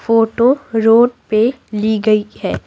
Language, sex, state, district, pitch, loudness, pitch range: Hindi, female, Bihar, Patna, 225 Hz, -14 LUFS, 220-240 Hz